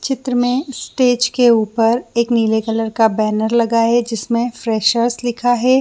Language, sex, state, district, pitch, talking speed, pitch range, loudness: Hindi, female, Jharkhand, Jamtara, 235 Hz, 165 wpm, 225-245 Hz, -16 LUFS